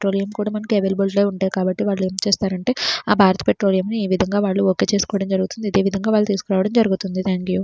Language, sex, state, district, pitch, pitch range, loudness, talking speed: Telugu, female, Andhra Pradesh, Srikakulam, 195 Hz, 190-205 Hz, -19 LUFS, 195 wpm